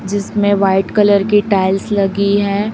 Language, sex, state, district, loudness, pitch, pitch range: Hindi, female, Chhattisgarh, Raipur, -14 LUFS, 200 Hz, 195-205 Hz